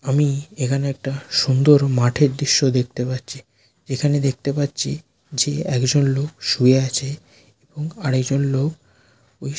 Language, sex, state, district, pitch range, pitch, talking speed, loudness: Bengali, male, West Bengal, Malda, 125-145 Hz, 135 Hz, 140 wpm, -20 LUFS